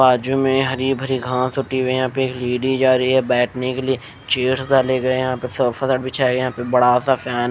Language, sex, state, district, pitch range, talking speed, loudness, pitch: Hindi, male, Bihar, Patna, 125-130 Hz, 230 wpm, -19 LUFS, 130 Hz